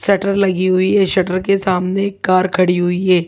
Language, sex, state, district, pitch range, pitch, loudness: Hindi, female, Delhi, New Delhi, 185-195 Hz, 185 Hz, -15 LUFS